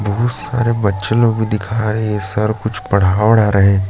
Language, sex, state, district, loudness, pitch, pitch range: Hindi, male, Chhattisgarh, Jashpur, -16 LUFS, 110 Hz, 100-115 Hz